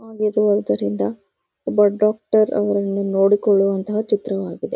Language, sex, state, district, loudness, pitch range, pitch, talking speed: Kannada, female, Karnataka, Gulbarga, -19 LUFS, 195-215 Hz, 205 Hz, 75 wpm